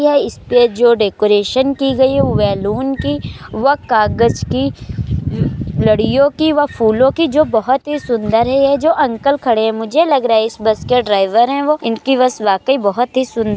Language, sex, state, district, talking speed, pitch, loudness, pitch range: Hindi, female, Uttar Pradesh, Jalaun, 200 wpm, 235 Hz, -14 LUFS, 215-270 Hz